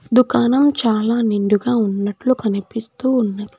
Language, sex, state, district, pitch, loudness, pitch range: Telugu, female, Telangana, Hyderabad, 225 Hz, -17 LUFS, 210-250 Hz